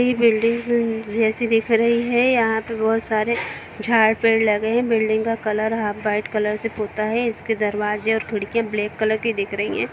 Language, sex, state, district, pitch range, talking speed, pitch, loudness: Hindi, female, Jharkhand, Jamtara, 215-230 Hz, 195 wpm, 220 Hz, -20 LUFS